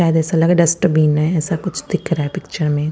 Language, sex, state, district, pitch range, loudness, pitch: Hindi, female, Punjab, Fazilka, 155-170 Hz, -17 LUFS, 160 Hz